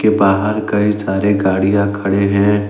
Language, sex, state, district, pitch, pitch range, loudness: Hindi, male, Jharkhand, Ranchi, 100 Hz, 100-105 Hz, -15 LUFS